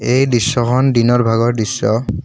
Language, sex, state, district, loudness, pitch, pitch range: Assamese, male, Assam, Kamrup Metropolitan, -14 LUFS, 120 Hz, 115-130 Hz